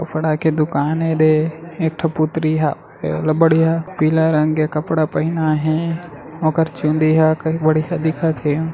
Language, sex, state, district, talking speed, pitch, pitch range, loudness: Chhattisgarhi, male, Chhattisgarh, Raigarh, 145 wpm, 160 Hz, 155-160 Hz, -18 LUFS